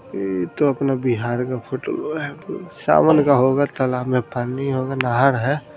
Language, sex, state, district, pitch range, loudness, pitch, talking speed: Hindi, male, Bihar, Saran, 125-140 Hz, -20 LUFS, 130 Hz, 105 wpm